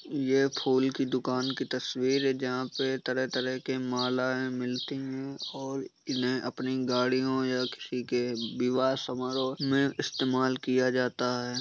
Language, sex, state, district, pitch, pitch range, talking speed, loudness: Hindi, male, Bihar, East Champaran, 130 Hz, 125-130 Hz, 145 wpm, -30 LUFS